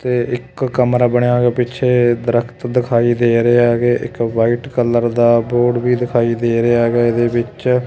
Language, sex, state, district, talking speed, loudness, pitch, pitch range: Punjabi, male, Punjab, Kapurthala, 175 wpm, -15 LUFS, 120 Hz, 120-125 Hz